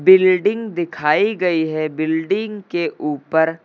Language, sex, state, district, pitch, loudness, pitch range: Hindi, male, Uttar Pradesh, Lucknow, 170 Hz, -18 LUFS, 155-190 Hz